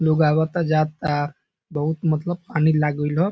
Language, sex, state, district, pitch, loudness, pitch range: Bhojpuri, male, Bihar, Saran, 155 Hz, -22 LUFS, 150-165 Hz